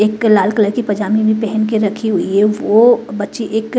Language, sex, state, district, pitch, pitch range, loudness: Hindi, female, Bihar, West Champaran, 215 Hz, 210-225 Hz, -14 LUFS